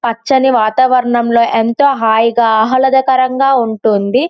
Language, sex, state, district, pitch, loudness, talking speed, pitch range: Telugu, female, Andhra Pradesh, Srikakulam, 240 Hz, -11 LUFS, 85 wpm, 225-265 Hz